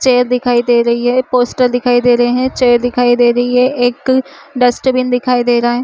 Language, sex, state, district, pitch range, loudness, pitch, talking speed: Chhattisgarhi, female, Chhattisgarh, Rajnandgaon, 245-255 Hz, -12 LUFS, 245 Hz, 215 wpm